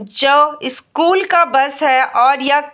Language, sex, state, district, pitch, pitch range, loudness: Hindi, female, Bihar, Bhagalpur, 285 Hz, 270-300 Hz, -13 LUFS